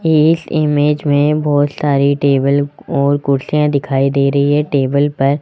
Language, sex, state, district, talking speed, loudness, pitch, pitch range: Hindi, male, Rajasthan, Jaipur, 155 wpm, -14 LUFS, 145 Hz, 140-150 Hz